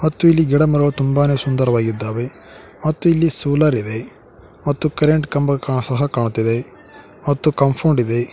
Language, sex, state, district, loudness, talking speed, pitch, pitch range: Kannada, male, Karnataka, Koppal, -17 LUFS, 130 wpm, 140 Hz, 125-155 Hz